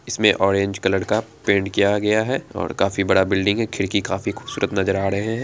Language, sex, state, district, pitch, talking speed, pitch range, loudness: Angika, female, Bihar, Araria, 100 Hz, 220 wpm, 95-105 Hz, -20 LUFS